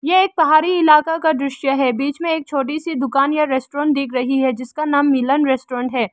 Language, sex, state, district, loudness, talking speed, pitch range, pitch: Hindi, female, Arunachal Pradesh, Lower Dibang Valley, -17 LUFS, 225 wpm, 265-310 Hz, 280 Hz